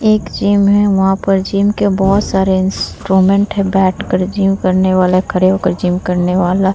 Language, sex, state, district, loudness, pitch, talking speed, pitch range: Hindi, female, Bihar, Vaishali, -13 LUFS, 190 Hz, 205 wpm, 185-200 Hz